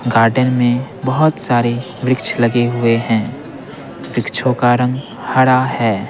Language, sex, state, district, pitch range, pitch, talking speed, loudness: Hindi, male, Bihar, Patna, 120-130 Hz, 125 Hz, 130 wpm, -15 LUFS